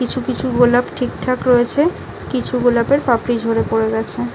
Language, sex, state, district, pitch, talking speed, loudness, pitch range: Bengali, female, West Bengal, Kolkata, 245 Hz, 165 wpm, -17 LUFS, 230-255 Hz